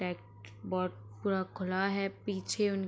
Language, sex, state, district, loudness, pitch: Hindi, female, Uttar Pradesh, Etah, -35 LUFS, 185 Hz